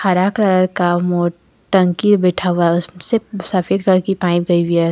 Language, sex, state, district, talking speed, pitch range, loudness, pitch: Hindi, female, Jharkhand, Ranchi, 195 wpm, 175-195 Hz, -16 LUFS, 180 Hz